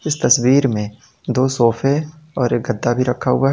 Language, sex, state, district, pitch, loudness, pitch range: Hindi, male, Uttar Pradesh, Lalitpur, 130 Hz, -17 LUFS, 120-140 Hz